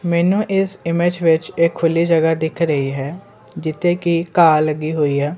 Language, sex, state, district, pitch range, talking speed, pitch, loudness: Punjabi, male, Punjab, Kapurthala, 155-175 Hz, 180 wpm, 165 Hz, -17 LUFS